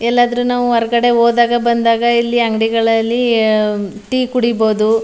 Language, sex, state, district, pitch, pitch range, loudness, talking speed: Kannada, female, Karnataka, Mysore, 235 Hz, 225-240 Hz, -14 LUFS, 105 wpm